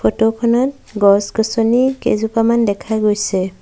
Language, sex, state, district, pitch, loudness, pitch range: Assamese, female, Assam, Sonitpur, 220 Hz, -16 LUFS, 205-235 Hz